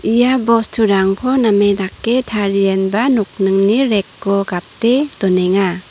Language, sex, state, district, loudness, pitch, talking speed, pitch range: Garo, female, Meghalaya, North Garo Hills, -15 LUFS, 200 Hz, 100 wpm, 195-230 Hz